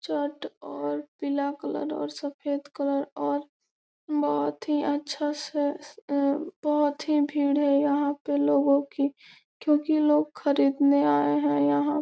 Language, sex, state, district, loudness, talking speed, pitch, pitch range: Hindi, female, Bihar, Gopalganj, -26 LUFS, 135 wpm, 285 Hz, 280-295 Hz